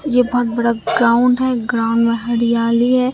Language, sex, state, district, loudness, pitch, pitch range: Hindi, female, Bihar, Katihar, -16 LUFS, 235 Hz, 230-250 Hz